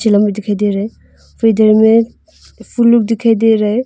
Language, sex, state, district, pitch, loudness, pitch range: Hindi, female, Arunachal Pradesh, Longding, 220 Hz, -12 LUFS, 210-230 Hz